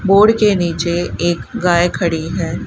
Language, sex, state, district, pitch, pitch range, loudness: Hindi, female, Rajasthan, Bikaner, 175 Hz, 170-195 Hz, -15 LUFS